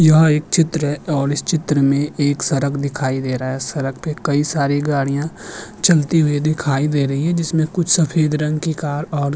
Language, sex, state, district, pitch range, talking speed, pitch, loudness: Hindi, male, Uttarakhand, Tehri Garhwal, 140-160 Hz, 210 wpm, 150 Hz, -18 LUFS